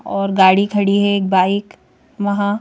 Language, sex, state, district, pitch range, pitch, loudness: Hindi, female, Madhya Pradesh, Bhopal, 195-205 Hz, 200 Hz, -15 LUFS